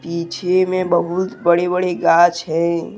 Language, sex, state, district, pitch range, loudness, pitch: Hindi, male, Jharkhand, Deoghar, 170-180 Hz, -17 LUFS, 175 Hz